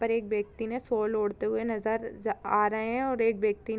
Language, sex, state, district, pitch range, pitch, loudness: Hindi, female, Jharkhand, Sahebganj, 215-230 Hz, 225 Hz, -29 LUFS